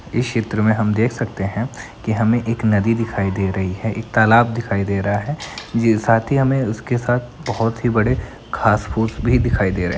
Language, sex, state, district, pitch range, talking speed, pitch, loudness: Hindi, female, Bihar, Madhepura, 105-120 Hz, 220 wpm, 115 Hz, -19 LUFS